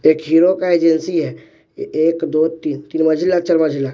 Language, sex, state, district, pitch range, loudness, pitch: Hindi, male, Bihar, West Champaran, 155-170 Hz, -16 LUFS, 160 Hz